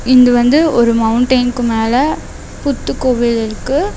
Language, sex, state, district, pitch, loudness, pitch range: Tamil, female, Tamil Nadu, Namakkal, 245 Hz, -13 LUFS, 230-255 Hz